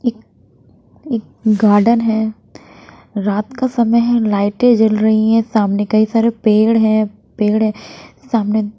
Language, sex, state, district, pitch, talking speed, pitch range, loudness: Hindi, female, Bihar, Patna, 220 Hz, 145 wpm, 215-230 Hz, -15 LUFS